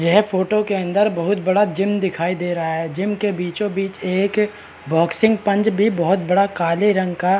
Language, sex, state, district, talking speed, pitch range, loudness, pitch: Hindi, male, Uttar Pradesh, Varanasi, 195 wpm, 175-205 Hz, -19 LUFS, 195 Hz